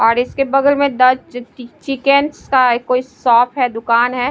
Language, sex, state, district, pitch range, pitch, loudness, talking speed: Hindi, female, Bihar, Patna, 245-275 Hz, 255 Hz, -14 LUFS, 195 wpm